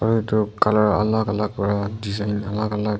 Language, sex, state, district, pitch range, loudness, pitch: Nagamese, male, Nagaland, Kohima, 105-110 Hz, -22 LUFS, 105 Hz